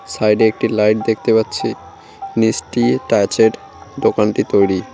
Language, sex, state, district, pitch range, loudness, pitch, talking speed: Bengali, male, West Bengal, Cooch Behar, 105-120 Hz, -16 LUFS, 110 Hz, 110 wpm